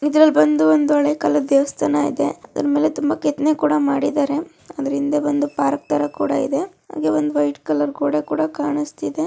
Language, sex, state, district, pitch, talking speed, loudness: Kannada, female, Karnataka, Dharwad, 285 Hz, 65 wpm, -19 LUFS